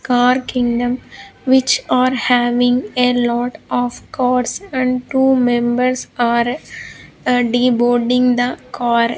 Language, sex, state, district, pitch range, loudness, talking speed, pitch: English, female, Andhra Pradesh, Sri Satya Sai, 240-250 Hz, -16 LUFS, 110 wpm, 245 Hz